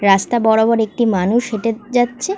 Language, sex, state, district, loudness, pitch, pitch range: Bengali, female, West Bengal, Malda, -16 LUFS, 230 Hz, 215-240 Hz